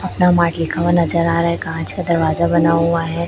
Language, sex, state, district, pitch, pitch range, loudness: Hindi, male, Chhattisgarh, Raipur, 170 Hz, 165-170 Hz, -16 LUFS